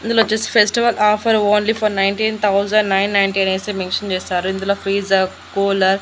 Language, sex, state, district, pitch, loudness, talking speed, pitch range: Telugu, female, Andhra Pradesh, Annamaya, 200 Hz, -17 LUFS, 160 wpm, 195-215 Hz